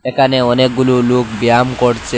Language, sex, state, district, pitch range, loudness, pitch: Bengali, male, Assam, Hailakandi, 120-130 Hz, -13 LUFS, 125 Hz